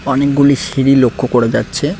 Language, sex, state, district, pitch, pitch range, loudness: Bengali, male, West Bengal, Cooch Behar, 135 Hz, 125-140 Hz, -13 LUFS